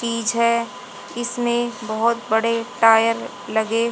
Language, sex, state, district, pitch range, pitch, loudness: Hindi, female, Haryana, Jhajjar, 225-240 Hz, 235 Hz, -20 LUFS